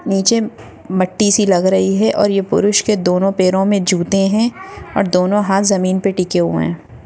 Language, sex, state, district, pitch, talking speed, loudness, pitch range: Hindi, female, Goa, North and South Goa, 195 Hz, 195 wpm, -15 LUFS, 185-205 Hz